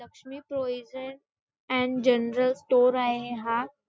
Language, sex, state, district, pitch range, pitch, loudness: Marathi, female, Maharashtra, Chandrapur, 240-260 Hz, 255 Hz, -26 LUFS